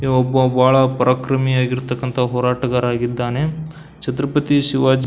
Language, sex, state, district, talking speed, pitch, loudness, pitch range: Kannada, male, Karnataka, Belgaum, 105 wpm, 130 Hz, -17 LUFS, 125-135 Hz